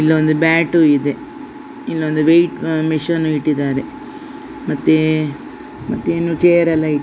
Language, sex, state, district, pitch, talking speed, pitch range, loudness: Kannada, female, Karnataka, Dakshina Kannada, 160 Hz, 110 wpm, 155-175 Hz, -16 LUFS